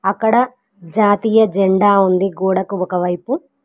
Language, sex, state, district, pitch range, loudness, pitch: Telugu, female, Telangana, Mahabubabad, 190-225 Hz, -16 LUFS, 200 Hz